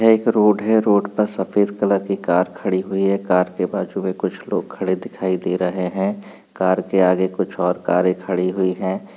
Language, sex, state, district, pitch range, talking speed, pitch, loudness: Hindi, male, Uttar Pradesh, Budaun, 90-100 Hz, 215 wpm, 95 Hz, -20 LUFS